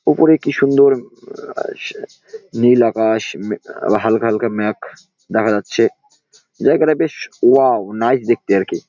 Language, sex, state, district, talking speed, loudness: Bengali, male, West Bengal, Jalpaiguri, 140 wpm, -16 LUFS